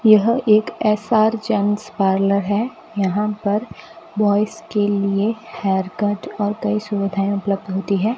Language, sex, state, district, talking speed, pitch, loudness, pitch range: Hindi, female, Rajasthan, Bikaner, 130 wpm, 205 Hz, -19 LUFS, 200-215 Hz